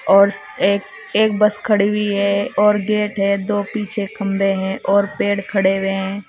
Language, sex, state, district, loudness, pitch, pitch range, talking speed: Hindi, female, Uttar Pradesh, Saharanpur, -18 LUFS, 200 Hz, 195-210 Hz, 180 wpm